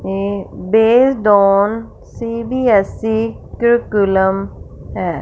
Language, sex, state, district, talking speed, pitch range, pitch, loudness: Hindi, female, Punjab, Fazilka, 70 wpm, 195-230 Hz, 220 Hz, -15 LUFS